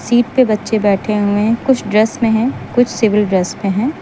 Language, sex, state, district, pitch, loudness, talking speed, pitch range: Hindi, female, Uttar Pradesh, Lucknow, 220 Hz, -15 LUFS, 225 wpm, 210-240 Hz